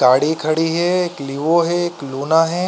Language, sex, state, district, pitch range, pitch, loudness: Hindi, male, Uttar Pradesh, Varanasi, 140-175 Hz, 165 Hz, -18 LUFS